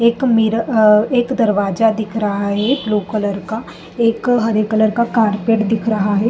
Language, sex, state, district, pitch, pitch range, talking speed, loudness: Hindi, female, Uttar Pradesh, Jalaun, 220 Hz, 210-230 Hz, 200 wpm, -16 LUFS